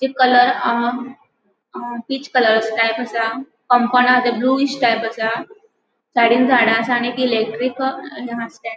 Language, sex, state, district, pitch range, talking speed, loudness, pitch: Konkani, female, Goa, North and South Goa, 230-255 Hz, 135 wpm, -17 LUFS, 245 Hz